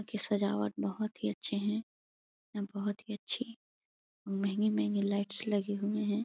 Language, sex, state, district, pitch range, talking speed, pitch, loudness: Hindi, female, Bihar, Jahanabad, 200-215 Hz, 155 wpm, 205 Hz, -34 LUFS